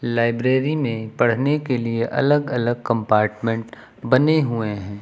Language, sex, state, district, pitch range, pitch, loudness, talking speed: Hindi, male, Uttar Pradesh, Lucknow, 115-135 Hz, 120 Hz, -20 LUFS, 130 wpm